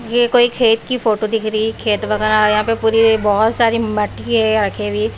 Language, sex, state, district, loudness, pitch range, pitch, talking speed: Hindi, female, Bihar, Kaimur, -15 LUFS, 215-230 Hz, 220 Hz, 210 wpm